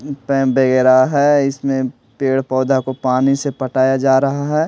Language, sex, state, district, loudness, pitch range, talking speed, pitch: Hindi, male, Delhi, New Delhi, -16 LUFS, 130-140 Hz, 165 wpm, 135 Hz